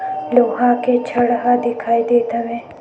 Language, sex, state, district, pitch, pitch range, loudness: Chhattisgarhi, female, Chhattisgarh, Sukma, 240 Hz, 235-245 Hz, -17 LUFS